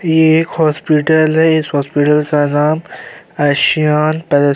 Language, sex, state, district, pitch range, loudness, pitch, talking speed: Hindi, male, Uttar Pradesh, Jyotiba Phule Nagar, 145-160 Hz, -13 LUFS, 155 Hz, 130 wpm